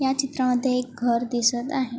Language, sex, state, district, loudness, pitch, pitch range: Marathi, female, Maharashtra, Chandrapur, -24 LUFS, 250 Hz, 240-260 Hz